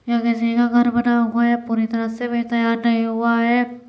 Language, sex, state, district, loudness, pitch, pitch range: Hindi, female, Uttar Pradesh, Deoria, -19 LUFS, 235 Hz, 230-240 Hz